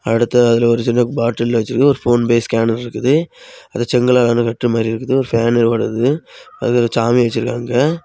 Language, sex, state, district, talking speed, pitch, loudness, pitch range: Tamil, male, Tamil Nadu, Kanyakumari, 165 wpm, 120 Hz, -15 LUFS, 115-125 Hz